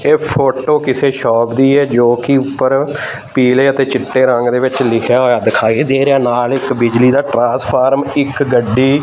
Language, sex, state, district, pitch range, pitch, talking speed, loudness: Punjabi, male, Punjab, Fazilka, 120-140 Hz, 130 Hz, 185 wpm, -12 LUFS